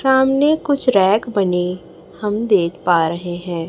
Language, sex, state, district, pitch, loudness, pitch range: Hindi, female, Chhattisgarh, Raipur, 190 Hz, -17 LUFS, 175-255 Hz